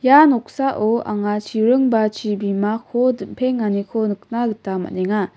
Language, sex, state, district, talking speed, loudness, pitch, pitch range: Garo, female, Meghalaya, West Garo Hills, 110 wpm, -19 LUFS, 220 Hz, 205-245 Hz